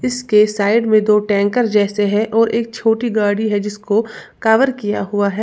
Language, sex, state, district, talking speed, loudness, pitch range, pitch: Hindi, female, Uttar Pradesh, Lalitpur, 190 wpm, -16 LUFS, 205-225 Hz, 215 Hz